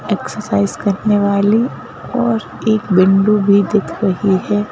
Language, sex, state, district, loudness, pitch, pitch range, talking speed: Hindi, female, Madhya Pradesh, Bhopal, -15 LUFS, 205 Hz, 195-215 Hz, 125 wpm